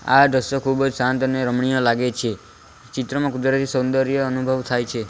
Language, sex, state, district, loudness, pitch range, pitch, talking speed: Gujarati, male, Gujarat, Valsad, -20 LUFS, 125-135 Hz, 130 Hz, 165 wpm